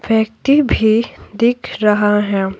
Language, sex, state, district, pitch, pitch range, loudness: Hindi, female, Bihar, Patna, 215 Hz, 205-230 Hz, -15 LUFS